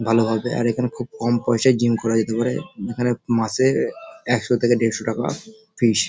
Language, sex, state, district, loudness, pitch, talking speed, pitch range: Bengali, male, West Bengal, Dakshin Dinajpur, -21 LUFS, 120 Hz, 175 wpm, 115-125 Hz